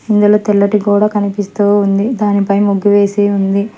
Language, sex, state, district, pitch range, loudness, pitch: Telugu, male, Telangana, Hyderabad, 200-210 Hz, -12 LUFS, 205 Hz